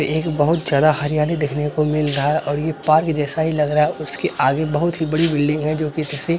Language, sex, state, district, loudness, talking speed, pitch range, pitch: Hindi, male, Bihar, Lakhisarai, -18 LUFS, 270 wpm, 150-160 Hz, 155 Hz